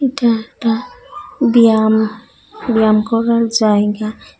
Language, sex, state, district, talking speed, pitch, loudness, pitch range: Bengali, female, Assam, Hailakandi, 80 wpm, 225 Hz, -14 LUFS, 220-235 Hz